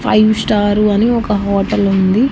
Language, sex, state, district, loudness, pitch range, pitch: Telugu, female, Andhra Pradesh, Annamaya, -13 LUFS, 200-215 Hz, 210 Hz